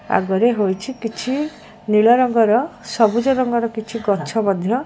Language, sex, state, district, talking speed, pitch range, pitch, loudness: Odia, female, Odisha, Khordha, 150 wpm, 215-245 Hz, 230 Hz, -18 LUFS